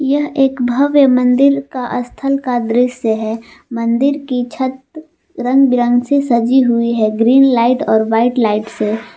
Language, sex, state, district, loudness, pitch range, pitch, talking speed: Hindi, female, Jharkhand, Palamu, -14 LUFS, 235-275 Hz, 250 Hz, 155 wpm